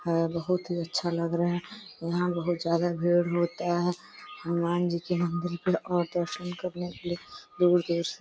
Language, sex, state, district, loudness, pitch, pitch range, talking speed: Hindi, female, Uttar Pradesh, Deoria, -29 LUFS, 175 Hz, 170-175 Hz, 190 wpm